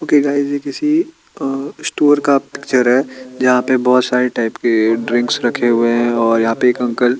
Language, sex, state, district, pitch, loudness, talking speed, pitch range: Hindi, male, Chandigarh, Chandigarh, 125 Hz, -15 LUFS, 210 wpm, 120-140 Hz